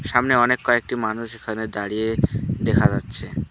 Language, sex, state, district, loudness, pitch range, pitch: Bengali, male, West Bengal, Alipurduar, -22 LUFS, 110-125 Hz, 120 Hz